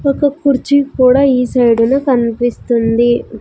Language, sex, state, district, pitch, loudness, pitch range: Telugu, female, Andhra Pradesh, Sri Satya Sai, 250 Hz, -12 LUFS, 235-275 Hz